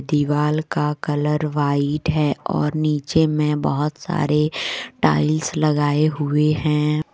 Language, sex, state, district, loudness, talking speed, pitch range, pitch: Hindi, female, Jharkhand, Deoghar, -20 LUFS, 120 wpm, 145-155 Hz, 150 Hz